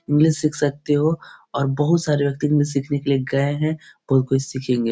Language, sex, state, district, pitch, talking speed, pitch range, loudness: Hindi, male, Bihar, Supaul, 145 Hz, 205 wpm, 135-150 Hz, -21 LUFS